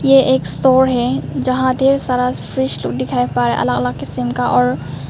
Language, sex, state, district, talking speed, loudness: Hindi, female, Arunachal Pradesh, Papum Pare, 190 wpm, -16 LUFS